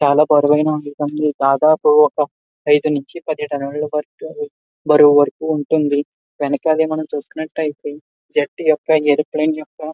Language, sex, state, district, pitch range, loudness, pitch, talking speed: Telugu, male, Andhra Pradesh, Visakhapatnam, 145-155 Hz, -17 LUFS, 150 Hz, 120 wpm